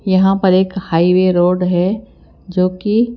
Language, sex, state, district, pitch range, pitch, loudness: Hindi, female, Himachal Pradesh, Shimla, 180-195 Hz, 185 Hz, -14 LUFS